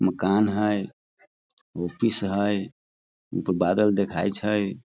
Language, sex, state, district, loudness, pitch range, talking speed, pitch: Hindi, male, Bihar, Sitamarhi, -25 LUFS, 95-105 Hz, 100 wpm, 100 Hz